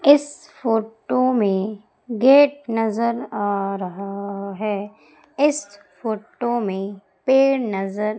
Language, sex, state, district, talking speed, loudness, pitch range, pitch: Hindi, female, Madhya Pradesh, Umaria, 95 wpm, -21 LUFS, 200-255 Hz, 215 Hz